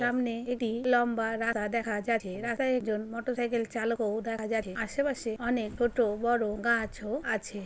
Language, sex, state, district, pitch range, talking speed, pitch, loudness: Bengali, female, West Bengal, Jalpaiguri, 220-240 Hz, 150 wpm, 230 Hz, -30 LUFS